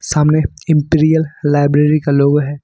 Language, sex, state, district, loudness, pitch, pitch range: Hindi, male, Jharkhand, Ranchi, -13 LUFS, 150 Hz, 145-155 Hz